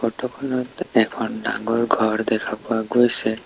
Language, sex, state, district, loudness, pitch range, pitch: Assamese, male, Assam, Sonitpur, -21 LUFS, 110-125 Hz, 115 Hz